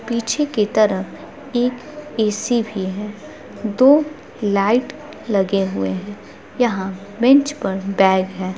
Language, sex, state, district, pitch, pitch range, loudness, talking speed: Hindi, male, Bihar, Gopalganj, 215 Hz, 195-250 Hz, -19 LUFS, 120 wpm